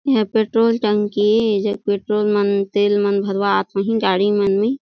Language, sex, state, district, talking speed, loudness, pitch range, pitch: Surgujia, female, Chhattisgarh, Sarguja, 160 wpm, -18 LUFS, 200-220 Hz, 205 Hz